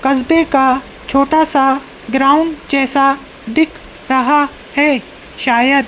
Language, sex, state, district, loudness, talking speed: Hindi, female, Madhya Pradesh, Dhar, -14 LUFS, 100 wpm